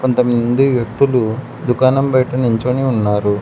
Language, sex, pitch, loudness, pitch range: Telugu, male, 125 Hz, -15 LUFS, 115-130 Hz